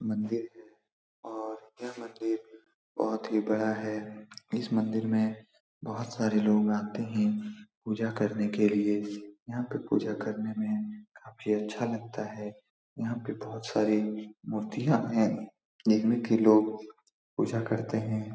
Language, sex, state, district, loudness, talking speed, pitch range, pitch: Hindi, male, Bihar, Saran, -30 LUFS, 135 wpm, 105-115 Hz, 110 Hz